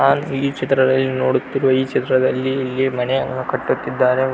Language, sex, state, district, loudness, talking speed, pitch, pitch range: Kannada, male, Karnataka, Belgaum, -18 LUFS, 125 wpm, 130 Hz, 130-135 Hz